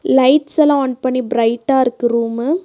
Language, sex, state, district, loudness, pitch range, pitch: Tamil, female, Tamil Nadu, Nilgiris, -15 LUFS, 240-280 Hz, 255 Hz